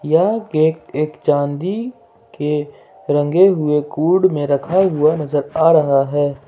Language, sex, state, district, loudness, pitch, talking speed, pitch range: Hindi, male, Jharkhand, Ranchi, -16 LUFS, 155 Hz, 140 wpm, 145-180 Hz